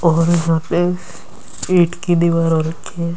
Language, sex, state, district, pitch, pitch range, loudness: Hindi, male, Delhi, New Delhi, 170 Hz, 165-175 Hz, -17 LUFS